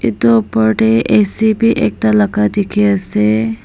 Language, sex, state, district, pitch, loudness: Nagamese, female, Nagaland, Dimapur, 115 Hz, -13 LUFS